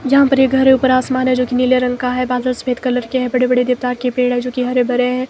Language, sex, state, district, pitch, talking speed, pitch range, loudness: Hindi, female, Himachal Pradesh, Shimla, 250 Hz, 340 wpm, 250-255 Hz, -15 LUFS